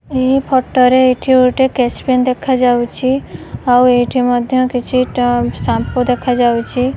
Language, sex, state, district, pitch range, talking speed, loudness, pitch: Odia, female, Odisha, Malkangiri, 245-255 Hz, 145 wpm, -13 LUFS, 250 Hz